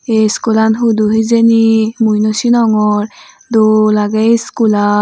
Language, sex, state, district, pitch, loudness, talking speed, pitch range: Chakma, female, Tripura, Unakoti, 220 Hz, -11 LUFS, 110 wpm, 215-230 Hz